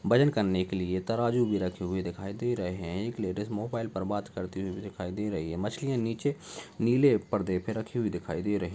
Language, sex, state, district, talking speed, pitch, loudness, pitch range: Hindi, male, Uttar Pradesh, Budaun, 225 wpm, 105 Hz, -31 LUFS, 95-115 Hz